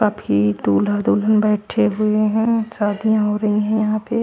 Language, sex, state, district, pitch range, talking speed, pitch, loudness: Hindi, female, Chandigarh, Chandigarh, 205-215 Hz, 170 wpm, 215 Hz, -18 LUFS